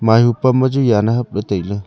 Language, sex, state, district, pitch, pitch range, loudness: Wancho, male, Arunachal Pradesh, Longding, 115 Hz, 105-125 Hz, -15 LUFS